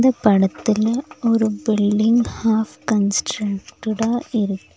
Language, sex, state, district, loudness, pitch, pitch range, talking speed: Tamil, female, Tamil Nadu, Nilgiris, -19 LUFS, 220 Hz, 210-230 Hz, 90 wpm